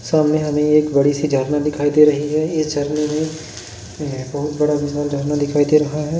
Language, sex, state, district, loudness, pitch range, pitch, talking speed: Hindi, male, Jharkhand, Jamtara, -18 LUFS, 145-150 Hz, 150 Hz, 205 wpm